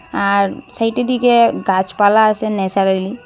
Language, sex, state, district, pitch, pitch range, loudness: Bengali, female, Assam, Hailakandi, 215 Hz, 195-235 Hz, -15 LUFS